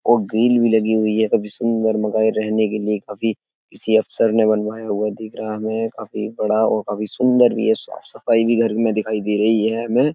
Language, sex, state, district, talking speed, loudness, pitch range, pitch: Hindi, male, Uttar Pradesh, Etah, 220 wpm, -19 LUFS, 105-115 Hz, 110 Hz